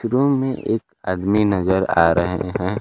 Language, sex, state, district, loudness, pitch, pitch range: Hindi, male, Bihar, Kaimur, -19 LUFS, 95 Hz, 90-115 Hz